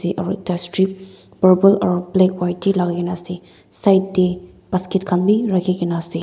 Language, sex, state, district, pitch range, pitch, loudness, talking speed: Nagamese, female, Nagaland, Dimapur, 180-190 Hz, 185 Hz, -18 LUFS, 165 wpm